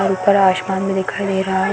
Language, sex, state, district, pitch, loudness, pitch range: Hindi, female, Bihar, Gaya, 190 Hz, -17 LUFS, 190-195 Hz